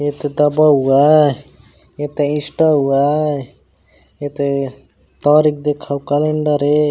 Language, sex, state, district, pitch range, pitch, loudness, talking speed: Chhattisgarhi, male, Chhattisgarh, Raigarh, 140-150 Hz, 145 Hz, -15 LUFS, 115 wpm